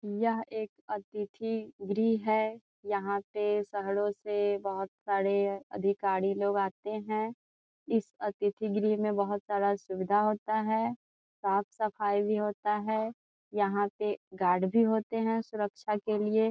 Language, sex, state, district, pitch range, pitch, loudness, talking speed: Hindi, female, Bihar, Saran, 200-220 Hz, 210 Hz, -31 LUFS, 135 wpm